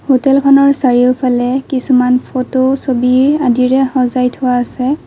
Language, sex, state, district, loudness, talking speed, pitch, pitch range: Assamese, female, Assam, Kamrup Metropolitan, -12 LUFS, 105 wpm, 255 Hz, 250-270 Hz